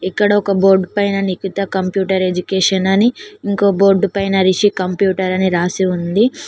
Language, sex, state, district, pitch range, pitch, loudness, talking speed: Telugu, female, Telangana, Mahabubabad, 185-200 Hz, 195 Hz, -15 LUFS, 150 wpm